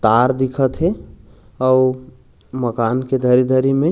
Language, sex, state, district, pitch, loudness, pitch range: Chhattisgarhi, male, Chhattisgarh, Raigarh, 130 Hz, -17 LUFS, 125-130 Hz